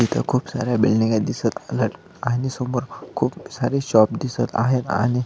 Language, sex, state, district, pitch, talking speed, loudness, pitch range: Marathi, male, Maharashtra, Solapur, 125 Hz, 160 wpm, -22 LUFS, 115-125 Hz